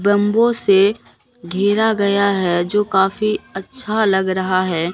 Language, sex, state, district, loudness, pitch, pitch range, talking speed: Hindi, male, Bihar, Katihar, -17 LUFS, 200 Hz, 190-215 Hz, 135 wpm